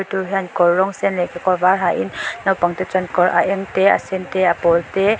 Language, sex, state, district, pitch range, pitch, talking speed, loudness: Mizo, female, Mizoram, Aizawl, 175-195 Hz, 185 Hz, 265 wpm, -18 LUFS